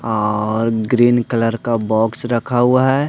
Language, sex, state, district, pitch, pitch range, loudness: Hindi, male, Haryana, Rohtak, 115 Hz, 110-120 Hz, -16 LUFS